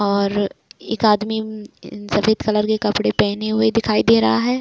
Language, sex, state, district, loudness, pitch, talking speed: Hindi, female, Chhattisgarh, Raigarh, -18 LUFS, 205 Hz, 170 wpm